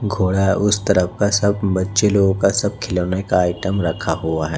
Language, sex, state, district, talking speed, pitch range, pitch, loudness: Hindi, male, Chhattisgarh, Raipur, 195 wpm, 90-100 Hz, 95 Hz, -18 LUFS